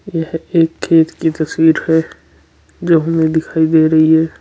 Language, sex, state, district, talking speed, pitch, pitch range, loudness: Marwari, male, Rajasthan, Churu, 165 wpm, 160 Hz, 160-165 Hz, -13 LUFS